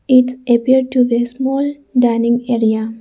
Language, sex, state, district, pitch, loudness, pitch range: English, female, Arunachal Pradesh, Lower Dibang Valley, 250 Hz, -15 LUFS, 235-260 Hz